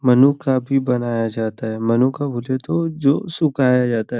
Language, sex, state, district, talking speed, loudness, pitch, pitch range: Hindi, male, Maharashtra, Nagpur, 200 wpm, -19 LUFS, 130 Hz, 120-140 Hz